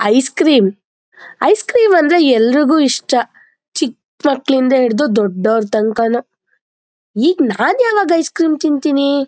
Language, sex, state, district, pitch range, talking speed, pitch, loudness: Kannada, female, Karnataka, Mysore, 235-325 Hz, 115 wpm, 280 Hz, -14 LUFS